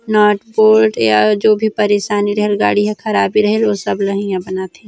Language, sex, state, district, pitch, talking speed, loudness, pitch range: Chhattisgarhi, female, Chhattisgarh, Sarguja, 210 Hz, 195 wpm, -14 LUFS, 195-215 Hz